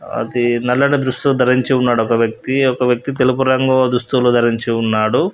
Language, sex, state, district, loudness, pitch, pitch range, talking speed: Telugu, male, Andhra Pradesh, Guntur, -15 LUFS, 125 Hz, 120-130 Hz, 155 wpm